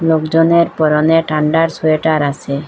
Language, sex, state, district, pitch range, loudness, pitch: Bengali, female, Assam, Hailakandi, 155-165 Hz, -13 LUFS, 160 Hz